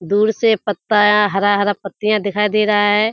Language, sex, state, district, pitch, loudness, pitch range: Hindi, female, Bihar, Kishanganj, 210 Hz, -16 LUFS, 205-215 Hz